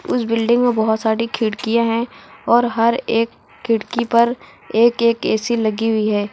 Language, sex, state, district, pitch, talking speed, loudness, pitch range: Hindi, female, Uttar Pradesh, Lucknow, 230 Hz, 170 wpm, -18 LUFS, 220-235 Hz